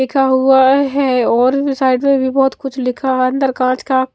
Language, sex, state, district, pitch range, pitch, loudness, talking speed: Hindi, female, Chandigarh, Chandigarh, 260-270 Hz, 265 Hz, -14 LUFS, 215 wpm